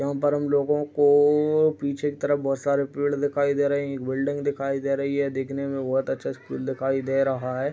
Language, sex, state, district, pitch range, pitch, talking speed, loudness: Hindi, male, Bihar, Madhepura, 135-145 Hz, 140 Hz, 225 wpm, -24 LUFS